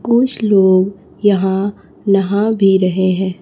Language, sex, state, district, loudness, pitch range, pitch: Hindi, female, Chhattisgarh, Raipur, -14 LUFS, 190-205 Hz, 195 Hz